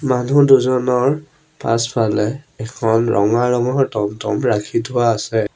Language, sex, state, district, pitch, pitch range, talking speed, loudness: Assamese, male, Assam, Sonitpur, 120 Hz, 110-130 Hz, 110 wpm, -17 LUFS